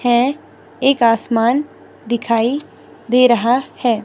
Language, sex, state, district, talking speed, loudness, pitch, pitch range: Hindi, female, Himachal Pradesh, Shimla, 105 wpm, -16 LUFS, 240 Hz, 230-255 Hz